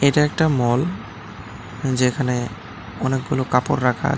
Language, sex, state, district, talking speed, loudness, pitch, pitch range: Bengali, male, Tripura, West Tripura, 115 wpm, -21 LUFS, 125 Hz, 115-140 Hz